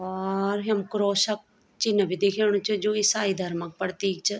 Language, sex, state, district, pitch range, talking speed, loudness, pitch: Garhwali, female, Uttarakhand, Tehri Garhwal, 190-210 Hz, 190 wpm, -25 LUFS, 200 Hz